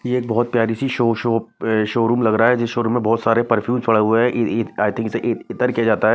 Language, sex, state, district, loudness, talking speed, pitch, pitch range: Hindi, male, Maharashtra, Mumbai Suburban, -19 LUFS, 290 wpm, 115 Hz, 115-120 Hz